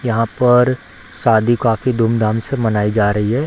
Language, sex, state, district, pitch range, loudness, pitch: Hindi, female, Bihar, Samastipur, 110-125 Hz, -16 LUFS, 115 Hz